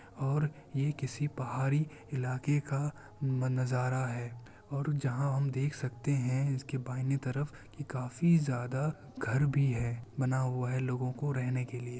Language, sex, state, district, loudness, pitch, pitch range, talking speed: Hindi, male, Bihar, Kishanganj, -33 LUFS, 130 Hz, 125-140 Hz, 160 wpm